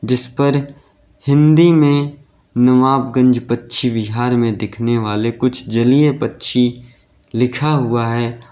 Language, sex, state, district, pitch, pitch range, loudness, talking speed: Hindi, male, Uttar Pradesh, Lalitpur, 125 Hz, 115-140 Hz, -15 LUFS, 115 wpm